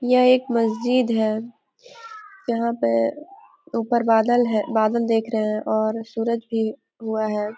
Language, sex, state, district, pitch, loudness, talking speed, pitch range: Hindi, female, Jharkhand, Sahebganj, 230 Hz, -21 LUFS, 140 wpm, 220-245 Hz